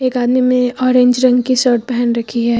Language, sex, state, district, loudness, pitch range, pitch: Hindi, female, Uttar Pradesh, Lucknow, -14 LUFS, 240-255 Hz, 250 Hz